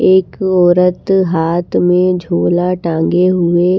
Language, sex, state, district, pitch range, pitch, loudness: Hindi, female, Maharashtra, Washim, 175-185 Hz, 180 Hz, -13 LUFS